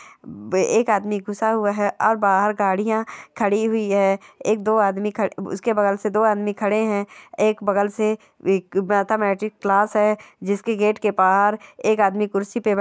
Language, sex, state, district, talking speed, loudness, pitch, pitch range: Hindi, female, Bihar, Jamui, 175 wpm, -21 LUFS, 210 Hz, 200-215 Hz